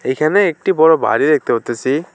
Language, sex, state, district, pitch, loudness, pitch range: Bengali, male, West Bengal, Alipurduar, 155 Hz, -14 LUFS, 135-180 Hz